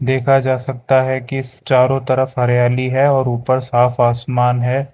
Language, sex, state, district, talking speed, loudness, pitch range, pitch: Hindi, male, Karnataka, Bangalore, 170 wpm, -16 LUFS, 125-135 Hz, 130 Hz